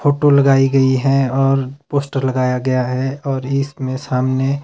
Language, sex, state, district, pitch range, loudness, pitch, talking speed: Hindi, male, Himachal Pradesh, Shimla, 130-140 Hz, -16 LUFS, 135 Hz, 155 wpm